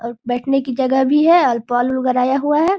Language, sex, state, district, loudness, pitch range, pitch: Hindi, female, Bihar, Darbhanga, -16 LUFS, 245-290 Hz, 260 Hz